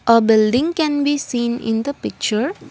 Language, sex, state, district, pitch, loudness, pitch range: English, female, Assam, Kamrup Metropolitan, 240 Hz, -18 LUFS, 225-290 Hz